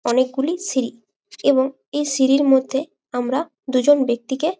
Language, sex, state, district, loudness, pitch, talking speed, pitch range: Bengali, female, West Bengal, Jalpaiguri, -20 LUFS, 270 Hz, 115 wpm, 255-290 Hz